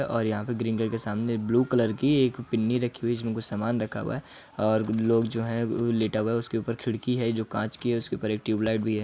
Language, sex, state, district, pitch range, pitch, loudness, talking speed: Hindi, male, Uttar Pradesh, Muzaffarnagar, 110-120 Hz, 115 Hz, -27 LUFS, 300 wpm